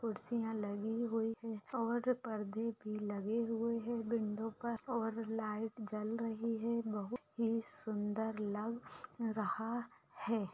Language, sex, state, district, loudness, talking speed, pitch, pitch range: Hindi, female, Bihar, Purnia, -40 LUFS, 130 wpm, 225 Hz, 215-230 Hz